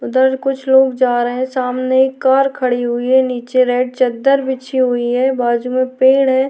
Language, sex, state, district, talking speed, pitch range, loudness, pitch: Hindi, female, Uttarakhand, Tehri Garhwal, 195 wpm, 250-265 Hz, -15 LUFS, 255 Hz